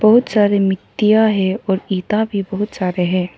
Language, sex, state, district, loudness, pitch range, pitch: Hindi, female, Arunachal Pradesh, Lower Dibang Valley, -17 LUFS, 190-215 Hz, 200 Hz